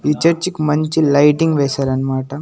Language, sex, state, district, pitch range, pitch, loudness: Telugu, male, Andhra Pradesh, Annamaya, 140-160 Hz, 150 Hz, -16 LUFS